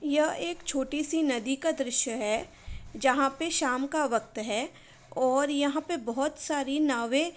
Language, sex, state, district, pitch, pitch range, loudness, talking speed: Hindi, female, Uttar Pradesh, Varanasi, 285 Hz, 255-305 Hz, -29 LUFS, 170 wpm